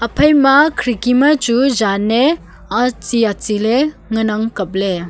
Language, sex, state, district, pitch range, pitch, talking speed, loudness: Wancho, female, Arunachal Pradesh, Longding, 210-270 Hz, 235 Hz, 140 wpm, -14 LUFS